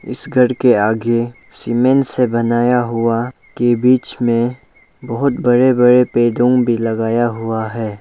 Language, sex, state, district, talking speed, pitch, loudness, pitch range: Hindi, male, Arunachal Pradesh, Lower Dibang Valley, 140 wpm, 120 Hz, -15 LUFS, 115-125 Hz